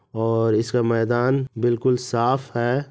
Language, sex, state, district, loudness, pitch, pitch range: Hindi, male, Bihar, Madhepura, -21 LUFS, 120 Hz, 115-130 Hz